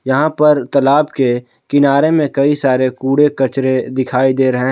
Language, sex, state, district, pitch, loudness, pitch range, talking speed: Hindi, male, Jharkhand, Palamu, 135 Hz, -14 LUFS, 130-145 Hz, 165 wpm